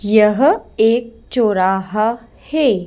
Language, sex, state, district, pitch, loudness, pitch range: Hindi, female, Madhya Pradesh, Bhopal, 220 Hz, -16 LUFS, 210-240 Hz